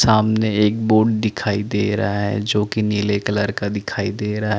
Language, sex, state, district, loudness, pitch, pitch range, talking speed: Hindi, male, Chandigarh, Chandigarh, -19 LUFS, 105 Hz, 105-110 Hz, 220 wpm